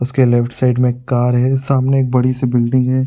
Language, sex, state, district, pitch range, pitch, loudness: Hindi, male, Uttar Pradesh, Budaun, 125-130 Hz, 125 Hz, -15 LUFS